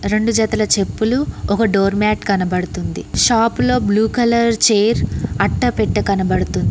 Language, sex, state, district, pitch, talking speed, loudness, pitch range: Telugu, female, Telangana, Mahabubabad, 215 Hz, 115 wpm, -16 LUFS, 195-230 Hz